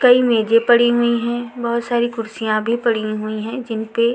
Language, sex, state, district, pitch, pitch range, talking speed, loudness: Hindi, female, Chhattisgarh, Raipur, 235 Hz, 225-240 Hz, 215 wpm, -18 LUFS